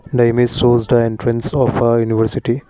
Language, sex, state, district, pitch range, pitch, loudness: English, male, Assam, Kamrup Metropolitan, 115-125 Hz, 120 Hz, -15 LUFS